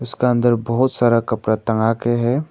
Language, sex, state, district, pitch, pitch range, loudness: Hindi, male, Arunachal Pradesh, Papum Pare, 120 Hz, 115-120 Hz, -18 LUFS